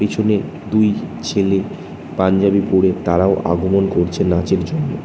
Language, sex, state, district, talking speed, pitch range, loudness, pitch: Bengali, male, West Bengal, North 24 Parganas, 120 wpm, 95-100 Hz, -17 LUFS, 95 Hz